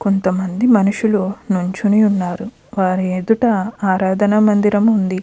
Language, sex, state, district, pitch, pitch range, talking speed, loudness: Telugu, female, Andhra Pradesh, Krishna, 200 Hz, 185-215 Hz, 105 wpm, -16 LUFS